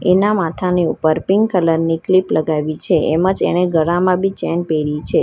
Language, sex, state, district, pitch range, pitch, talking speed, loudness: Gujarati, female, Gujarat, Valsad, 160-185 Hz, 170 Hz, 195 wpm, -16 LUFS